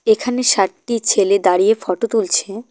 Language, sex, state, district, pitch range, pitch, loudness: Bengali, female, West Bengal, Cooch Behar, 195-230 Hz, 220 Hz, -16 LUFS